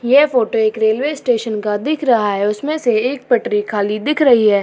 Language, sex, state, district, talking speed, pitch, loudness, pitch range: Hindi, female, Uttar Pradesh, Jyotiba Phule Nagar, 220 wpm, 230 Hz, -16 LUFS, 210-275 Hz